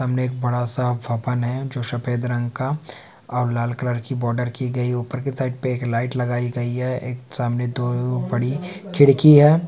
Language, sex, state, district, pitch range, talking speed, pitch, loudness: Hindi, male, Bihar, Supaul, 120-130 Hz, 185 wpm, 125 Hz, -21 LUFS